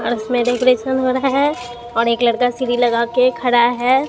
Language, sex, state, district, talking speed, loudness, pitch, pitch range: Hindi, female, Bihar, Katihar, 205 wpm, -16 LUFS, 245 Hz, 240-255 Hz